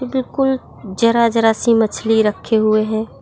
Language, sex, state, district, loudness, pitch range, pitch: Hindi, female, Bihar, Sitamarhi, -16 LUFS, 220-235 Hz, 225 Hz